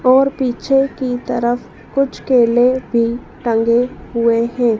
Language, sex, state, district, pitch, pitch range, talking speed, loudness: Hindi, female, Madhya Pradesh, Dhar, 245 Hz, 235-255 Hz, 125 wpm, -16 LUFS